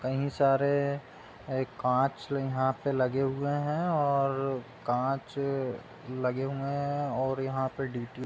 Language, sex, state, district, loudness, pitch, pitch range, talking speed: Hindi, male, Uttar Pradesh, Budaun, -30 LUFS, 135 Hz, 130-140 Hz, 125 wpm